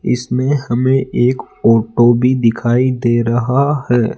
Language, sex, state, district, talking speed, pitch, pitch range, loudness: Hindi, male, Rajasthan, Jaipur, 130 wpm, 120 Hz, 120-130 Hz, -14 LUFS